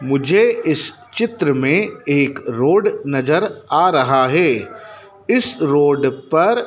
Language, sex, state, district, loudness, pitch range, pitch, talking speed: Hindi, male, Madhya Pradesh, Dhar, -16 LUFS, 140-220 Hz, 155 Hz, 115 wpm